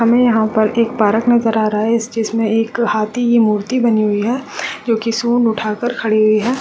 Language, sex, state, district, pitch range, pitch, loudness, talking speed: Hindi, female, Chhattisgarh, Raigarh, 215-235 Hz, 225 Hz, -15 LUFS, 220 wpm